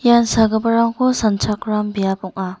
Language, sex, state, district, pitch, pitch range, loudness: Garo, female, Meghalaya, North Garo Hills, 220 Hz, 195-230 Hz, -17 LUFS